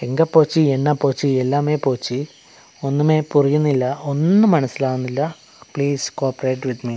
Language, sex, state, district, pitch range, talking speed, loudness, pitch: Malayalam, male, Kerala, Kasaragod, 130-150 Hz, 130 wpm, -19 LUFS, 140 Hz